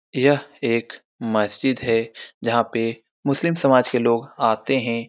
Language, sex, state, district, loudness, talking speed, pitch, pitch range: Hindi, male, Bihar, Saran, -21 LUFS, 140 wpm, 115 Hz, 115-135 Hz